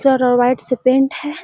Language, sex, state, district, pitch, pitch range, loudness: Hindi, female, Bihar, Gaya, 260 Hz, 255-275 Hz, -15 LUFS